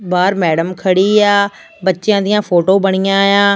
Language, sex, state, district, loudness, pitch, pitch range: Punjabi, female, Punjab, Fazilka, -13 LUFS, 195 Hz, 185-200 Hz